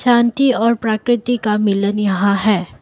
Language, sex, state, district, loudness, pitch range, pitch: Hindi, female, Assam, Kamrup Metropolitan, -16 LUFS, 205-240 Hz, 220 Hz